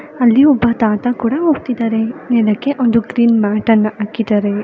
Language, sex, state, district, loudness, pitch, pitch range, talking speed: Kannada, female, Karnataka, Gulbarga, -14 LUFS, 230 Hz, 215-245 Hz, 130 wpm